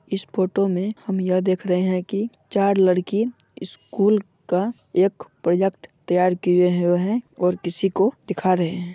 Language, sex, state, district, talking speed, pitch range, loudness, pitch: Hindi, female, Bihar, Supaul, 165 wpm, 180-200 Hz, -21 LUFS, 185 Hz